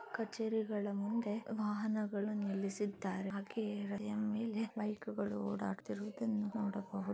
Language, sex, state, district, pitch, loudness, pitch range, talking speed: Kannada, female, Karnataka, Chamarajanagar, 210 Hz, -40 LUFS, 200-220 Hz, 90 wpm